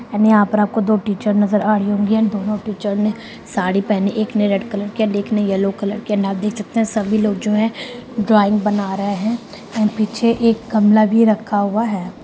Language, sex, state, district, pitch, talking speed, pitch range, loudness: Hindi, female, Bihar, Madhepura, 210 Hz, 240 wpm, 205-220 Hz, -17 LUFS